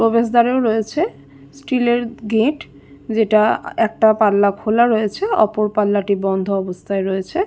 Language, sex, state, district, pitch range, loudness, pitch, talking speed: Bengali, female, West Bengal, Jalpaiguri, 195-235 Hz, -17 LUFS, 215 Hz, 120 wpm